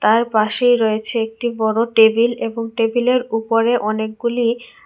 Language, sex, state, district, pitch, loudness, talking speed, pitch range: Bengali, female, Tripura, West Tripura, 230 Hz, -17 LUFS, 125 wpm, 220-240 Hz